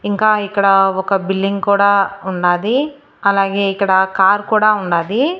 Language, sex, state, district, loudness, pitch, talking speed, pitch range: Telugu, female, Andhra Pradesh, Annamaya, -15 LUFS, 200 Hz, 120 wpm, 190-210 Hz